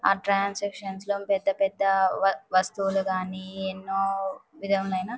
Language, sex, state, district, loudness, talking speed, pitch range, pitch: Telugu, female, Andhra Pradesh, Anantapur, -26 LUFS, 105 wpm, 190-200 Hz, 195 Hz